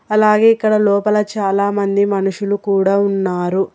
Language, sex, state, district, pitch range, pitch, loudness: Telugu, female, Telangana, Hyderabad, 195-210 Hz, 200 Hz, -15 LUFS